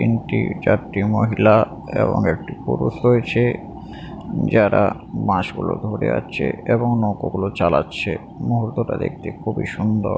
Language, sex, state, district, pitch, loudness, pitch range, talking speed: Bengali, male, West Bengal, Paschim Medinipur, 110 Hz, -20 LUFS, 100-120 Hz, 120 wpm